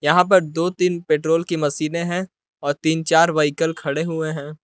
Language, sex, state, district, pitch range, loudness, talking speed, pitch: Hindi, male, Jharkhand, Palamu, 155-170 Hz, -20 LUFS, 195 wpm, 160 Hz